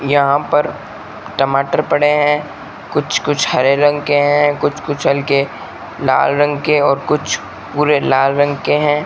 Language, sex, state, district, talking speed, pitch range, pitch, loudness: Hindi, male, Rajasthan, Bikaner, 160 wpm, 140-145 Hz, 145 Hz, -15 LUFS